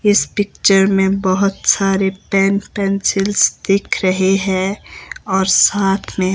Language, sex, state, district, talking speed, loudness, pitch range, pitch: Hindi, female, Himachal Pradesh, Shimla, 125 wpm, -15 LUFS, 190-200 Hz, 195 Hz